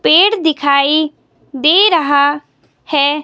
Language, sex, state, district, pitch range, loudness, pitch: Hindi, female, Himachal Pradesh, Shimla, 285-320 Hz, -12 LUFS, 300 Hz